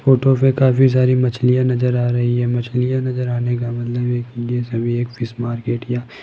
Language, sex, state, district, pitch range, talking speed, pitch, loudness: Hindi, male, Rajasthan, Jaipur, 120-125 Hz, 210 wpm, 120 Hz, -18 LUFS